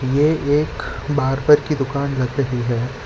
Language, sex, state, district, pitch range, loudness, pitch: Hindi, male, Gujarat, Valsad, 130-145 Hz, -19 LUFS, 140 Hz